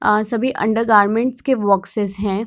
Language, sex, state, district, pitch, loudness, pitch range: Hindi, female, Bihar, Darbhanga, 215 Hz, -17 LUFS, 205-235 Hz